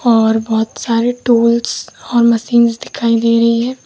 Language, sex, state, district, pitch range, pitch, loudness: Hindi, female, Uttar Pradesh, Lalitpur, 230-235 Hz, 235 Hz, -14 LUFS